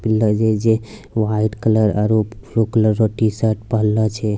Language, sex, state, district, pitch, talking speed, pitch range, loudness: Angika, male, Bihar, Bhagalpur, 110 Hz, 165 wpm, 105-110 Hz, -18 LUFS